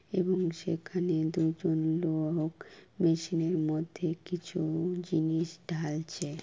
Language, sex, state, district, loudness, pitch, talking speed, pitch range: Bengali, female, West Bengal, Kolkata, -32 LUFS, 165 Hz, 85 wpm, 160-175 Hz